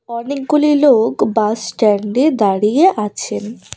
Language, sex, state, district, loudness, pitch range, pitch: Bengali, female, West Bengal, Cooch Behar, -15 LUFS, 210-280 Hz, 230 Hz